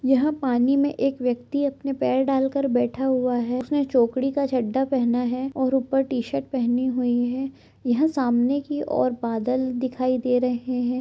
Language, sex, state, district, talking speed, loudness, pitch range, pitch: Hindi, female, Chhattisgarh, Korba, 175 wpm, -23 LUFS, 245-270 Hz, 260 Hz